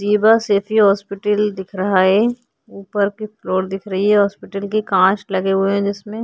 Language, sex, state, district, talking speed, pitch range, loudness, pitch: Hindi, female, Uttar Pradesh, Jyotiba Phule Nagar, 180 wpm, 195-210 Hz, -17 LUFS, 200 Hz